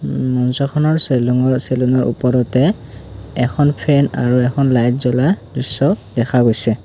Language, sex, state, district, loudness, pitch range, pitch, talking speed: Assamese, male, Assam, Kamrup Metropolitan, -15 LUFS, 120-135 Hz, 125 Hz, 125 wpm